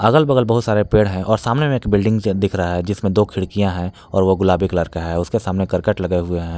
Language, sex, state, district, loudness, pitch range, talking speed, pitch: Hindi, male, Jharkhand, Palamu, -18 LUFS, 90-105 Hz, 280 wpm, 100 Hz